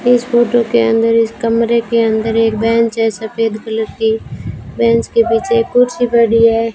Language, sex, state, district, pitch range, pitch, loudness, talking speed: Hindi, female, Rajasthan, Bikaner, 220-235 Hz, 230 Hz, -13 LUFS, 185 wpm